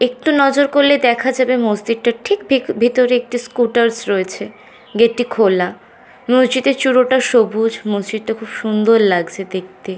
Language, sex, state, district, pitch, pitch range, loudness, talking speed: Bengali, female, West Bengal, North 24 Parganas, 235 Hz, 215-255 Hz, -15 LUFS, 150 wpm